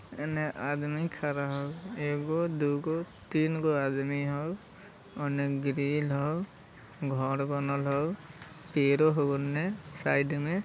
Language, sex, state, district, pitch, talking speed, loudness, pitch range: Bajjika, male, Bihar, Vaishali, 145 Hz, 125 wpm, -31 LUFS, 140-160 Hz